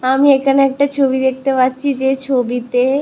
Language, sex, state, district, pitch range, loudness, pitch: Bengali, female, West Bengal, Malda, 260-275 Hz, -15 LUFS, 265 Hz